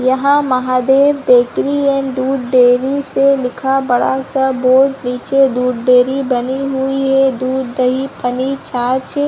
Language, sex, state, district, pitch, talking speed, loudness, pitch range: Hindi, female, Chhattisgarh, Raigarh, 265 Hz, 140 wpm, -14 LUFS, 250-270 Hz